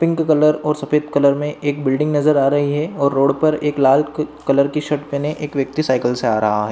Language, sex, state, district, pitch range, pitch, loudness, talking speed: Hindi, male, Maharashtra, Dhule, 140-150 Hz, 145 Hz, -17 LUFS, 250 wpm